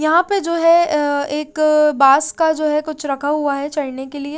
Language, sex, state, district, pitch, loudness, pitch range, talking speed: Hindi, female, Haryana, Rohtak, 300 Hz, -16 LUFS, 285-310 Hz, 235 wpm